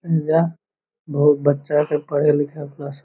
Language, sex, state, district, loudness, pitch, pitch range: Hindi, male, Bihar, Lakhisarai, -19 LUFS, 150 Hz, 145-155 Hz